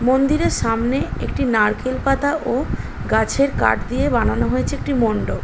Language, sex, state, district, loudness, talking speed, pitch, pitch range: Bengali, female, West Bengal, Jhargram, -19 LUFS, 155 wpm, 260 Hz, 230-275 Hz